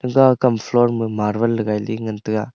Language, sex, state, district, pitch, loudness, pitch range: Wancho, male, Arunachal Pradesh, Longding, 115 Hz, -19 LUFS, 110-120 Hz